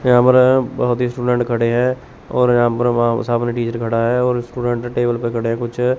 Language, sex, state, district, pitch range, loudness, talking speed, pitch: Hindi, male, Chandigarh, Chandigarh, 120-125 Hz, -17 LUFS, 220 wpm, 120 Hz